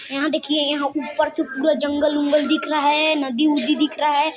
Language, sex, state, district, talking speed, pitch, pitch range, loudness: Hindi, male, Chhattisgarh, Sarguja, 220 wpm, 300 Hz, 290-305 Hz, -20 LUFS